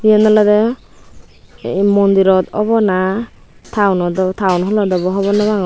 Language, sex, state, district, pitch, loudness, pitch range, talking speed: Chakma, female, Tripura, West Tripura, 200 Hz, -14 LUFS, 185-210 Hz, 140 wpm